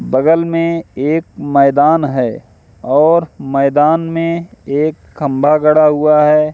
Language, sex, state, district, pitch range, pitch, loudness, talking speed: Hindi, male, Madhya Pradesh, Katni, 145-165 Hz, 150 Hz, -13 LUFS, 120 wpm